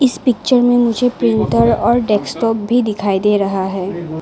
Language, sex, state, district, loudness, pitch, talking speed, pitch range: Hindi, female, Arunachal Pradesh, Lower Dibang Valley, -15 LUFS, 210 Hz, 170 wpm, 190-245 Hz